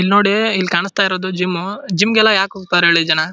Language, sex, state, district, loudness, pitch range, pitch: Kannada, male, Karnataka, Dharwad, -15 LUFS, 175-200 Hz, 190 Hz